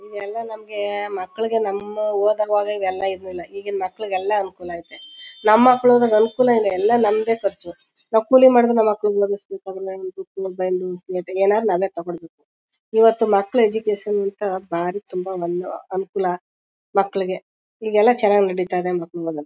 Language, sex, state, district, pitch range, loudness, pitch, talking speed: Kannada, female, Karnataka, Mysore, 185-215 Hz, -20 LUFS, 200 Hz, 140 wpm